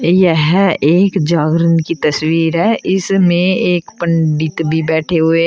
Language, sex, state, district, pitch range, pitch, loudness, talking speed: Hindi, female, Uttar Pradesh, Shamli, 160-180 Hz, 170 Hz, -13 LUFS, 140 wpm